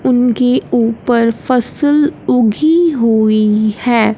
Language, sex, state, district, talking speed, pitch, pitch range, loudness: Hindi, female, Punjab, Fazilka, 85 wpm, 240 Hz, 225-255 Hz, -13 LUFS